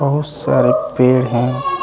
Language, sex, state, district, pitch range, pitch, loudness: Hindi, male, Jharkhand, Deoghar, 125-150 Hz, 135 Hz, -15 LUFS